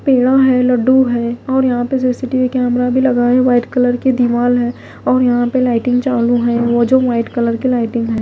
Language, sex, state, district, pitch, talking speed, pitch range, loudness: Hindi, female, Punjab, Pathankot, 245 Hz, 225 wpm, 240-255 Hz, -14 LUFS